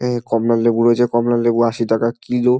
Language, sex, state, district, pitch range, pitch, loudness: Bengali, male, West Bengal, Dakshin Dinajpur, 115-120 Hz, 120 Hz, -17 LUFS